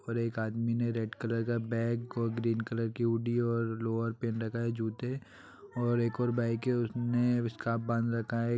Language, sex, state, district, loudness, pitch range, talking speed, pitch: Hindi, male, Bihar, Gopalganj, -33 LUFS, 115-120 Hz, 205 wpm, 115 Hz